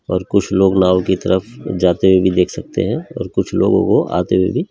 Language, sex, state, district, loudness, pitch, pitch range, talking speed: Hindi, male, Delhi, New Delhi, -16 LUFS, 95 Hz, 90-95 Hz, 240 wpm